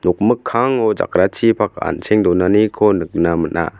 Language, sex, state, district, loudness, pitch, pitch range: Garo, male, Meghalaya, West Garo Hills, -16 LUFS, 95 Hz, 90-105 Hz